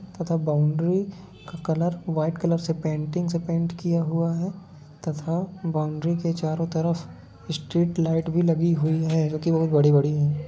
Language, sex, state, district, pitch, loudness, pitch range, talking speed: Hindi, male, Bihar, Sitamarhi, 165 Hz, -25 LUFS, 155-170 Hz, 165 wpm